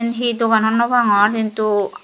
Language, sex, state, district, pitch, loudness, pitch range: Chakma, female, Tripura, Dhalai, 220 Hz, -16 LUFS, 215-235 Hz